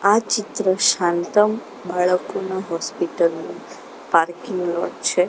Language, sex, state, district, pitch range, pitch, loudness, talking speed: Gujarati, female, Gujarat, Gandhinagar, 175-205 Hz, 180 Hz, -21 LUFS, 100 wpm